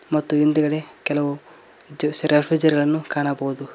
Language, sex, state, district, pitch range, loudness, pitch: Kannada, male, Karnataka, Koppal, 145-155 Hz, -20 LUFS, 150 Hz